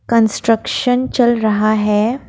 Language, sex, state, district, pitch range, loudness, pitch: Hindi, female, Assam, Kamrup Metropolitan, 215-240 Hz, -15 LUFS, 225 Hz